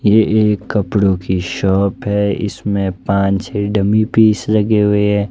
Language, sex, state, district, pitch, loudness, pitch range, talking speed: Hindi, male, Himachal Pradesh, Shimla, 105 Hz, -15 LUFS, 100-105 Hz, 160 wpm